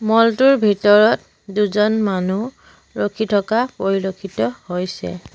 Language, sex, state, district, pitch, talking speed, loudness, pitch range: Assamese, female, Assam, Sonitpur, 205 Hz, 100 wpm, -18 LUFS, 195-220 Hz